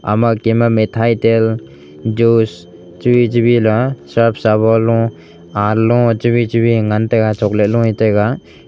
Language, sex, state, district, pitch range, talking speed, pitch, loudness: Wancho, male, Arunachal Pradesh, Longding, 105-115 Hz, 160 wpm, 115 Hz, -14 LUFS